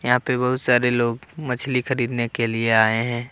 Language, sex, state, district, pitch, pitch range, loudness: Hindi, male, Jharkhand, Deoghar, 120 Hz, 115-125 Hz, -21 LUFS